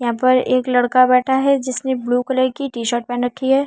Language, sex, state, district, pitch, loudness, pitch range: Hindi, female, Delhi, New Delhi, 255 Hz, -17 LUFS, 245-260 Hz